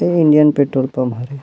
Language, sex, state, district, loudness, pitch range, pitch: Chhattisgarhi, male, Chhattisgarh, Rajnandgaon, -14 LUFS, 130-150 Hz, 140 Hz